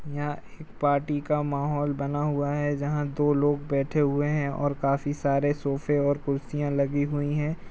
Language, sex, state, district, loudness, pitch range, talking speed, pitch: Hindi, male, Uttar Pradesh, Jalaun, -27 LUFS, 140-145 Hz, 185 wpm, 145 Hz